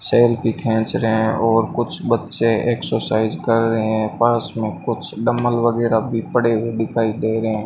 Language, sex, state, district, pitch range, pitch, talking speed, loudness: Hindi, male, Rajasthan, Bikaner, 110-115 Hz, 115 Hz, 180 wpm, -19 LUFS